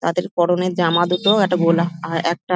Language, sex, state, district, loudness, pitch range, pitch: Bengali, female, West Bengal, Dakshin Dinajpur, -18 LUFS, 170-180 Hz, 175 Hz